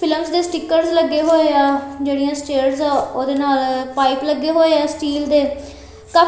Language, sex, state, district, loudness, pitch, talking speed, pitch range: Punjabi, female, Punjab, Kapurthala, -17 LUFS, 290 Hz, 170 wpm, 280-320 Hz